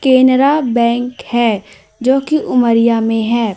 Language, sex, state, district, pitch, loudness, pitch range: Hindi, female, Madhya Pradesh, Umaria, 240 Hz, -13 LUFS, 230-260 Hz